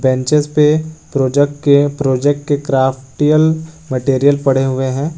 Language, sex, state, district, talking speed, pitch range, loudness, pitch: Hindi, male, Jharkhand, Garhwa, 125 wpm, 135-150 Hz, -14 LUFS, 145 Hz